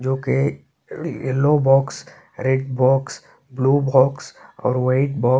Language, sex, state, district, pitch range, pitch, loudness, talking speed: Hindi, male, Chhattisgarh, Korba, 130-140 Hz, 135 Hz, -19 LUFS, 135 wpm